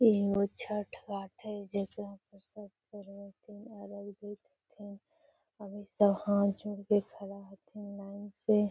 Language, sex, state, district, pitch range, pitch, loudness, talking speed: Magahi, female, Bihar, Gaya, 200-210 Hz, 205 Hz, -34 LUFS, 130 wpm